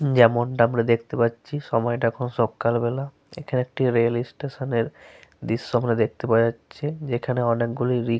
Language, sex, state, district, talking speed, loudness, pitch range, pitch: Bengali, male, Jharkhand, Sahebganj, 155 wpm, -23 LUFS, 115-130 Hz, 120 Hz